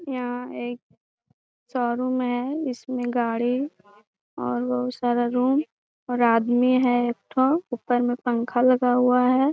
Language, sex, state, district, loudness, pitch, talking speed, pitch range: Hindi, female, Bihar, Jamui, -23 LUFS, 245 Hz, 130 wpm, 240-255 Hz